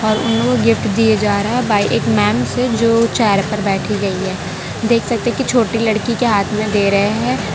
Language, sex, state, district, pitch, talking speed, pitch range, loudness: Hindi, female, Gujarat, Valsad, 220 Hz, 230 wpm, 205-235 Hz, -15 LUFS